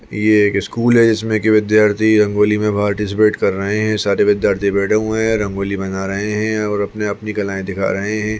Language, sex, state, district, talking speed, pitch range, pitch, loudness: Hindi, male, Chhattisgarh, Bastar, 205 wpm, 100-110 Hz, 105 Hz, -16 LUFS